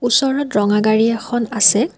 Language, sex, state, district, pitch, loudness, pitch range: Assamese, female, Assam, Kamrup Metropolitan, 230 Hz, -15 LUFS, 210-245 Hz